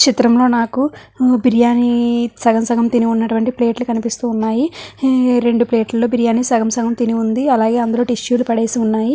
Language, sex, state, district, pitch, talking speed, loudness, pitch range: Telugu, female, Andhra Pradesh, Visakhapatnam, 235 Hz, 155 wpm, -15 LUFS, 230-245 Hz